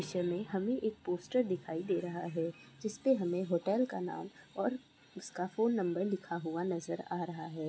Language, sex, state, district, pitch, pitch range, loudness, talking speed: Hindi, female, Bihar, Kishanganj, 180 Hz, 170-200 Hz, -36 LUFS, 195 wpm